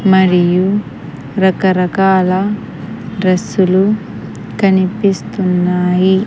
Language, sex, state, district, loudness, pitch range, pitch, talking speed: Telugu, female, Andhra Pradesh, Sri Satya Sai, -13 LUFS, 185-195 Hz, 190 Hz, 40 wpm